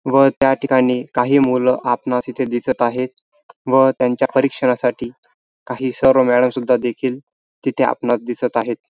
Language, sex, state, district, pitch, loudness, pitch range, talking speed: Marathi, male, Maharashtra, Dhule, 125 Hz, -17 LUFS, 125-130 Hz, 150 wpm